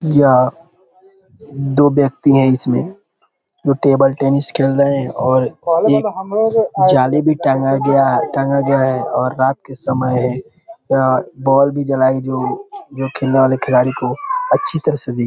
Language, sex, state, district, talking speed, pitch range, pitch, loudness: Hindi, male, Bihar, East Champaran, 160 wpm, 130-155 Hz, 135 Hz, -15 LUFS